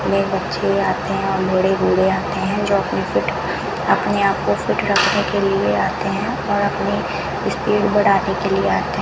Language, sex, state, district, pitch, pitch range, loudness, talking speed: Hindi, female, Rajasthan, Bikaner, 195 Hz, 190-200 Hz, -18 LUFS, 195 wpm